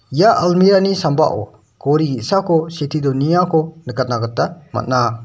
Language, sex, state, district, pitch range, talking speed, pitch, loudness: Garo, male, Meghalaya, West Garo Hills, 125-170 Hz, 115 wpm, 150 Hz, -16 LUFS